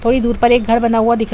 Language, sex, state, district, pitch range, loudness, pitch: Hindi, female, Bihar, Saran, 230-240 Hz, -14 LUFS, 235 Hz